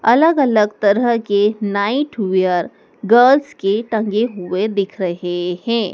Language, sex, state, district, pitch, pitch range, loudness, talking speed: Hindi, female, Madhya Pradesh, Dhar, 210 Hz, 195-235 Hz, -16 LUFS, 120 wpm